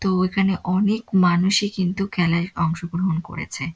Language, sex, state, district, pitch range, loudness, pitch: Bengali, female, West Bengal, Dakshin Dinajpur, 170-195 Hz, -21 LUFS, 185 Hz